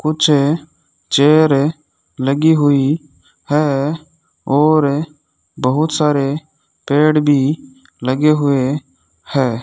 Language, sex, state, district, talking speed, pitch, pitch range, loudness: Hindi, male, Rajasthan, Bikaner, 80 wpm, 145 Hz, 140-155 Hz, -15 LUFS